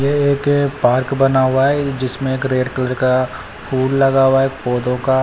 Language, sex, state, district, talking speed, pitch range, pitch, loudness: Hindi, male, Chandigarh, Chandigarh, 220 wpm, 130-135 Hz, 130 Hz, -16 LUFS